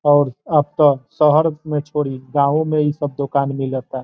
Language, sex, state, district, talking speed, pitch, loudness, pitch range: Bhojpuri, male, Bihar, Saran, 180 wpm, 145 Hz, -18 LUFS, 135-150 Hz